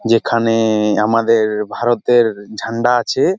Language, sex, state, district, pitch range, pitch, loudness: Bengali, male, West Bengal, Jalpaiguri, 110-120 Hz, 115 Hz, -15 LUFS